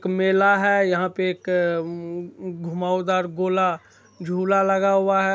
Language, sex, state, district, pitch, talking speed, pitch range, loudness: Maithili, male, Bihar, Supaul, 185 Hz, 145 wpm, 175-195 Hz, -21 LUFS